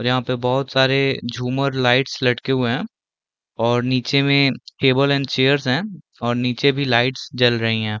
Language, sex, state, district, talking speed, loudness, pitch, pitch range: Hindi, male, Chhattisgarh, Balrampur, 185 wpm, -19 LUFS, 130 Hz, 125-135 Hz